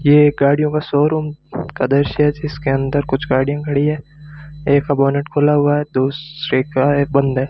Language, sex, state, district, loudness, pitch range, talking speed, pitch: Hindi, male, Rajasthan, Bikaner, -17 LUFS, 140-150 Hz, 190 wpm, 145 Hz